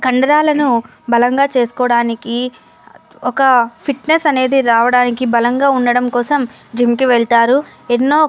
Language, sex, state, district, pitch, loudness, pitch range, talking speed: Telugu, female, Andhra Pradesh, Anantapur, 250 Hz, -14 LUFS, 240-270 Hz, 110 wpm